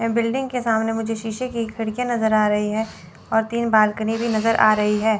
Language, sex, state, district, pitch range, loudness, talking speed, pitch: Hindi, female, Chandigarh, Chandigarh, 215-230 Hz, -21 LUFS, 220 wpm, 225 Hz